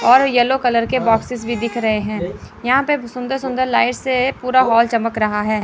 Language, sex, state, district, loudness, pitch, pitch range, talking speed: Hindi, female, Chandigarh, Chandigarh, -17 LUFS, 245 Hz, 230-255 Hz, 215 wpm